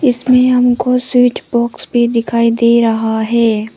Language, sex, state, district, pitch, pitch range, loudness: Hindi, female, Arunachal Pradesh, Papum Pare, 235 Hz, 230-250 Hz, -12 LUFS